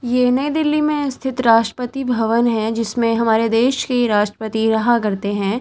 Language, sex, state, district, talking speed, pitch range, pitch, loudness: Hindi, female, Delhi, New Delhi, 170 wpm, 220-255 Hz, 235 Hz, -18 LUFS